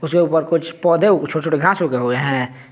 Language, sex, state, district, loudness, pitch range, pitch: Hindi, male, Jharkhand, Garhwa, -17 LUFS, 135-170 Hz, 160 Hz